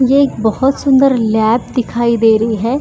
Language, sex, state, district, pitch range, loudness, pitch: Hindi, female, Maharashtra, Chandrapur, 225-270 Hz, -13 LUFS, 235 Hz